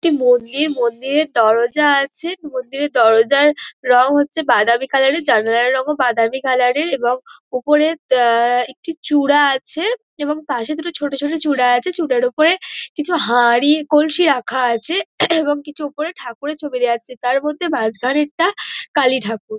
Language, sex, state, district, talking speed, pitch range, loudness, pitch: Bengali, female, West Bengal, Dakshin Dinajpur, 160 wpm, 245-310 Hz, -16 LUFS, 285 Hz